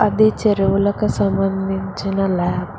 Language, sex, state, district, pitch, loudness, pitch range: Telugu, female, Telangana, Hyderabad, 195 Hz, -18 LUFS, 195-205 Hz